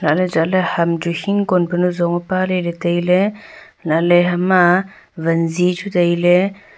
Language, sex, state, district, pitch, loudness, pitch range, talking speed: Wancho, female, Arunachal Pradesh, Longding, 175 Hz, -16 LUFS, 170-185 Hz, 135 wpm